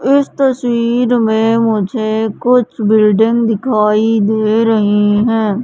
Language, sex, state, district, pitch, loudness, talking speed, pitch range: Hindi, female, Madhya Pradesh, Katni, 225 Hz, -13 LUFS, 105 wpm, 215-235 Hz